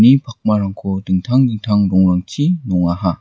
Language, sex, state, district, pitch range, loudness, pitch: Garo, male, Meghalaya, West Garo Hills, 95-120 Hz, -16 LUFS, 100 Hz